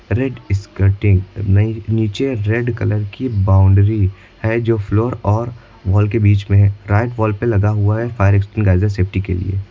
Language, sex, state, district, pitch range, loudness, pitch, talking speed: Hindi, male, Uttar Pradesh, Lucknow, 100-115 Hz, -16 LUFS, 105 Hz, 165 wpm